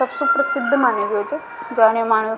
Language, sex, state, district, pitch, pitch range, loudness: Rajasthani, female, Rajasthan, Nagaur, 255 Hz, 220-275 Hz, -18 LUFS